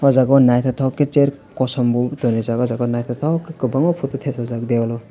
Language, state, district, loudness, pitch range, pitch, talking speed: Kokborok, Tripura, West Tripura, -18 LUFS, 120-140 Hz, 130 Hz, 175 wpm